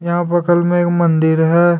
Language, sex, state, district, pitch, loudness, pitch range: Hindi, male, Jharkhand, Deoghar, 175 Hz, -14 LUFS, 170-175 Hz